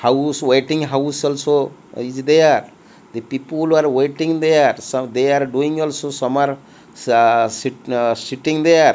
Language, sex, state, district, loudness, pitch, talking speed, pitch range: English, male, Odisha, Malkangiri, -17 LUFS, 140 Hz, 155 wpm, 130-155 Hz